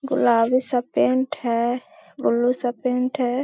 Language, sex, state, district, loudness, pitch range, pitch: Hindi, female, Bihar, Gaya, -22 LUFS, 245-265 Hz, 250 Hz